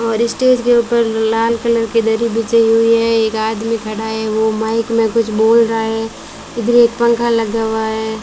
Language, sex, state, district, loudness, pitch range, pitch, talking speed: Hindi, female, Rajasthan, Bikaner, -15 LUFS, 220-230 Hz, 225 Hz, 195 wpm